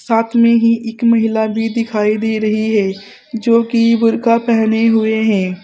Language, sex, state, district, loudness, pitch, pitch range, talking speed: Hindi, female, Uttar Pradesh, Saharanpur, -14 LUFS, 225 Hz, 220-230 Hz, 170 wpm